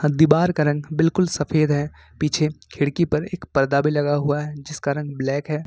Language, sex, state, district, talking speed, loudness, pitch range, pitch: Hindi, male, Jharkhand, Ranchi, 200 wpm, -21 LUFS, 145-155 Hz, 150 Hz